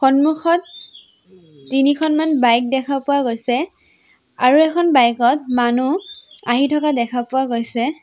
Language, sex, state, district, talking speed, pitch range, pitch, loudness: Assamese, female, Assam, Sonitpur, 110 wpm, 240-305 Hz, 265 Hz, -17 LUFS